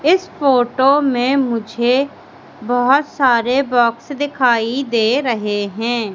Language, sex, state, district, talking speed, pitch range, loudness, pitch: Hindi, female, Madhya Pradesh, Katni, 105 wpm, 235-275 Hz, -16 LUFS, 250 Hz